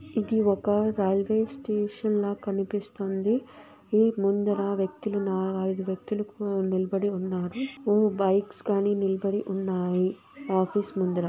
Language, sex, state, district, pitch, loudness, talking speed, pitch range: Telugu, female, Andhra Pradesh, Anantapur, 200 Hz, -27 LUFS, 105 wpm, 190-210 Hz